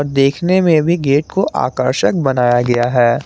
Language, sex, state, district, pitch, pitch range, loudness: Hindi, male, Jharkhand, Garhwa, 140 Hz, 125-170 Hz, -14 LUFS